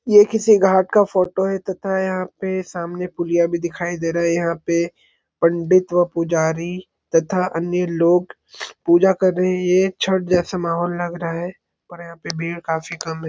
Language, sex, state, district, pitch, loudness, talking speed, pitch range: Hindi, male, Chhattisgarh, Sarguja, 175 Hz, -19 LUFS, 190 wpm, 170-185 Hz